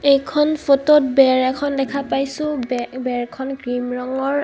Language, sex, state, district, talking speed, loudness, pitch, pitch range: Assamese, female, Assam, Kamrup Metropolitan, 150 wpm, -19 LUFS, 270 Hz, 255-285 Hz